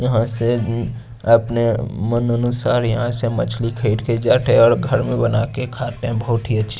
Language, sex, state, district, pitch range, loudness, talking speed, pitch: Hindi, male, Chandigarh, Chandigarh, 115-120 Hz, -18 LUFS, 205 wpm, 115 Hz